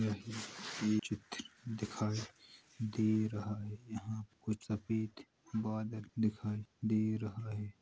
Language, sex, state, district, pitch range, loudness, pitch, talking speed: Hindi, male, Uttar Pradesh, Hamirpur, 105-110 Hz, -39 LUFS, 110 Hz, 115 wpm